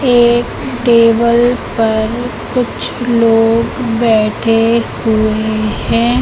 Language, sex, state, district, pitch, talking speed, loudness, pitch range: Hindi, female, Madhya Pradesh, Katni, 230 Hz, 75 wpm, -13 LUFS, 225-240 Hz